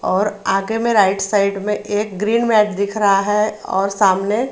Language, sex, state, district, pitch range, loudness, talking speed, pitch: Hindi, female, Maharashtra, Gondia, 195-215 Hz, -17 LUFS, 185 wpm, 205 Hz